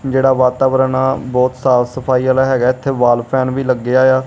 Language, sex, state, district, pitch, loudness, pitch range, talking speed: Punjabi, male, Punjab, Kapurthala, 130 Hz, -14 LUFS, 125-130 Hz, 195 wpm